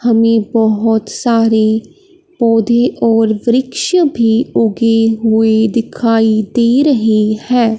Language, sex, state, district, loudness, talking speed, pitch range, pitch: Hindi, male, Punjab, Fazilka, -12 LUFS, 100 wpm, 220-240 Hz, 225 Hz